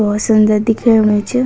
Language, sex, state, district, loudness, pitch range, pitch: Garhwali, female, Uttarakhand, Tehri Garhwal, -12 LUFS, 210-230 Hz, 215 Hz